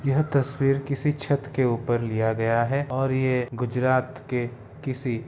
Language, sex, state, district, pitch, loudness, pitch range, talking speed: Hindi, female, Bihar, Darbhanga, 130 Hz, -25 LUFS, 120-140 Hz, 170 wpm